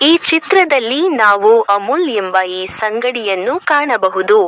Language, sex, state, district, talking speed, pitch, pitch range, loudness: Kannada, female, Karnataka, Koppal, 105 wpm, 245 Hz, 200-325 Hz, -13 LUFS